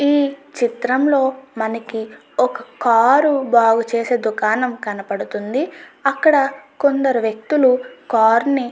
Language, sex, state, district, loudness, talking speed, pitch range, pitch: Telugu, female, Andhra Pradesh, Chittoor, -18 LUFS, 110 wpm, 230-275 Hz, 255 Hz